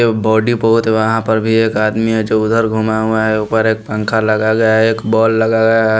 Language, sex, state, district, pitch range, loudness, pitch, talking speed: Hindi, male, Punjab, Pathankot, 110-115 Hz, -13 LUFS, 110 Hz, 250 wpm